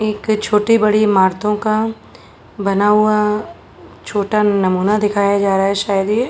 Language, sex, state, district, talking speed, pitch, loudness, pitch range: Hindi, female, Uttar Pradesh, Jalaun, 150 wpm, 210 Hz, -15 LUFS, 200-215 Hz